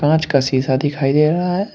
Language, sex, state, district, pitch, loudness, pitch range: Hindi, male, Uttar Pradesh, Shamli, 150 Hz, -17 LUFS, 135-160 Hz